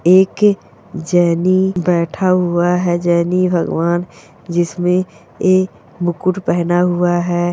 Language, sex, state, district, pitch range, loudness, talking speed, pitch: Hindi, female, Chhattisgarh, Bilaspur, 175-185 Hz, -15 LUFS, 105 wpm, 175 Hz